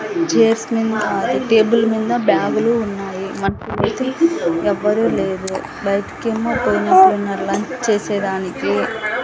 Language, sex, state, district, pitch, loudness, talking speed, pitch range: Telugu, female, Andhra Pradesh, Anantapur, 220 Hz, -17 LUFS, 110 wpm, 200-235 Hz